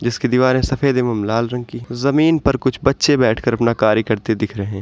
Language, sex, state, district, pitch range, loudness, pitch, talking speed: Hindi, male, Uttar Pradesh, Muzaffarnagar, 110-135 Hz, -17 LUFS, 120 Hz, 225 wpm